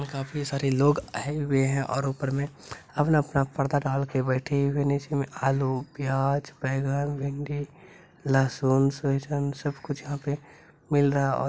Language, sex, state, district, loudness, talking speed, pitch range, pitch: Hindi, male, Bihar, Araria, -27 LUFS, 170 wpm, 135-145 Hz, 140 Hz